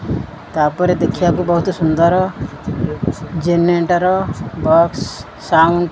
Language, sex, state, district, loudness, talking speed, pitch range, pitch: Odia, female, Odisha, Khordha, -16 LUFS, 80 wpm, 165-180 Hz, 170 Hz